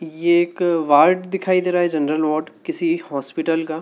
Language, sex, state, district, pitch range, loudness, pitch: Hindi, male, Madhya Pradesh, Dhar, 155-180 Hz, -19 LUFS, 170 Hz